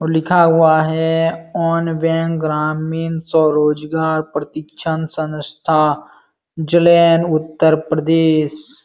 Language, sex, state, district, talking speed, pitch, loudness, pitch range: Hindi, male, Uttar Pradesh, Jalaun, 80 wpm, 160 Hz, -16 LUFS, 155-165 Hz